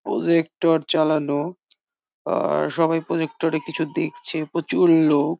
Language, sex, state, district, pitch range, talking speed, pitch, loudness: Bengali, female, West Bengal, Jhargram, 155-165 Hz, 110 wpm, 160 Hz, -21 LUFS